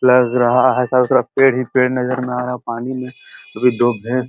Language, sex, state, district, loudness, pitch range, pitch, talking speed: Hindi, male, Uttar Pradesh, Muzaffarnagar, -16 LUFS, 125-130 Hz, 125 Hz, 265 wpm